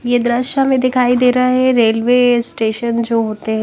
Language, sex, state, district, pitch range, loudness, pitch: Hindi, female, Punjab, Kapurthala, 230-250 Hz, -14 LUFS, 245 Hz